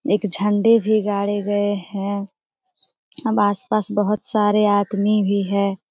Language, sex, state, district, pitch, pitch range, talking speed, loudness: Hindi, female, Jharkhand, Jamtara, 205 Hz, 200-215 Hz, 120 wpm, -19 LUFS